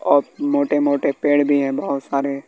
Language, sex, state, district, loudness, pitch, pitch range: Hindi, male, Bihar, West Champaran, -19 LUFS, 140 Hz, 140-145 Hz